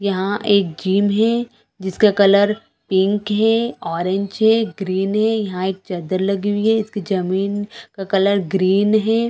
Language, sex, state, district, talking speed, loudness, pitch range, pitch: Hindi, female, Chhattisgarh, Balrampur, 155 wpm, -18 LUFS, 190-215 Hz, 200 Hz